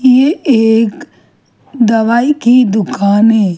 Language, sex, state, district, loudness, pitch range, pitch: Hindi, female, Chhattisgarh, Jashpur, -10 LUFS, 220-255 Hz, 230 Hz